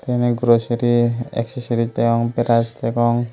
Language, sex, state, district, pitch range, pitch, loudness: Chakma, male, Tripura, Unakoti, 115-120 Hz, 120 Hz, -19 LUFS